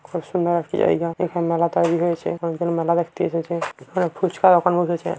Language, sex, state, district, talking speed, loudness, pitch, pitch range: Bengali, male, West Bengal, Jhargram, 195 wpm, -21 LUFS, 170 Hz, 170-175 Hz